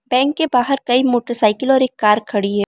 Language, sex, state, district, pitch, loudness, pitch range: Hindi, female, Arunachal Pradesh, Lower Dibang Valley, 245 Hz, -16 LUFS, 215-265 Hz